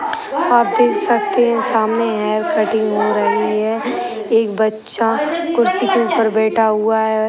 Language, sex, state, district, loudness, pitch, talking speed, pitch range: Hindi, female, Uttar Pradesh, Gorakhpur, -16 LUFS, 225 Hz, 150 wpm, 220-235 Hz